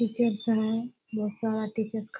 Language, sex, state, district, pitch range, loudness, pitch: Hindi, female, Bihar, Purnia, 220-230 Hz, -29 LUFS, 220 Hz